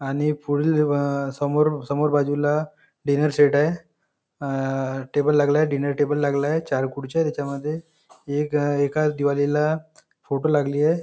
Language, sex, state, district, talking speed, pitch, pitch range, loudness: Marathi, male, Maharashtra, Nagpur, 135 wpm, 145 Hz, 140-150 Hz, -22 LUFS